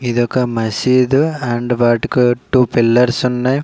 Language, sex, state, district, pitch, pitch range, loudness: Telugu, male, Andhra Pradesh, Srikakulam, 125 Hz, 120-130 Hz, -15 LUFS